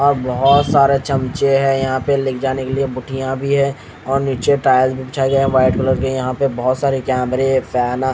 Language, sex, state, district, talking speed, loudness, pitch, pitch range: Hindi, male, Haryana, Rohtak, 235 wpm, -16 LUFS, 135 Hz, 130-135 Hz